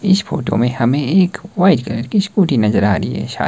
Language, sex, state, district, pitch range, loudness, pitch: Hindi, male, Himachal Pradesh, Shimla, 115-190 Hz, -16 LUFS, 150 Hz